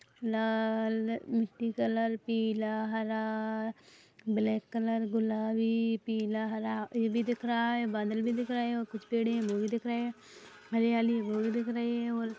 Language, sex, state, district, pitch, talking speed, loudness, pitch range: Hindi, female, Chhattisgarh, Rajnandgaon, 225 Hz, 155 wpm, -32 LUFS, 220-235 Hz